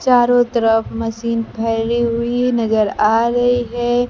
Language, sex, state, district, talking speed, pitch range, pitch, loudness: Hindi, female, Bihar, Kaimur, 130 wpm, 225-245 Hz, 235 Hz, -16 LUFS